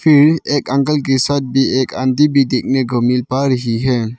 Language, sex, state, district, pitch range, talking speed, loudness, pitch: Hindi, male, Arunachal Pradesh, Lower Dibang Valley, 125-145 Hz, 200 wpm, -15 LUFS, 135 Hz